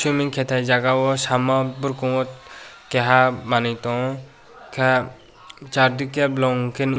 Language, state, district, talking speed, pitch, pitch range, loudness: Kokborok, Tripura, West Tripura, 110 wpm, 130 Hz, 125-135 Hz, -20 LUFS